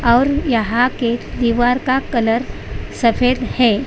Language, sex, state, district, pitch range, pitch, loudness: Hindi, female, Maharashtra, Mumbai Suburban, 235-255 Hz, 245 Hz, -17 LUFS